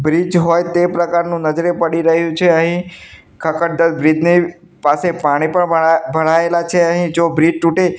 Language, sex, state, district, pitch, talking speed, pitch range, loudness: Gujarati, male, Gujarat, Gandhinagar, 170 Hz, 165 wpm, 165-175 Hz, -14 LUFS